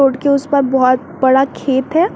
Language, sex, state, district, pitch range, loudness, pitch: Hindi, female, Jharkhand, Garhwa, 260-280 Hz, -14 LUFS, 270 Hz